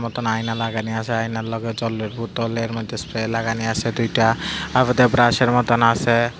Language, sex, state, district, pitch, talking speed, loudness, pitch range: Bengali, male, Tripura, Dhalai, 115 Hz, 185 wpm, -20 LUFS, 115-120 Hz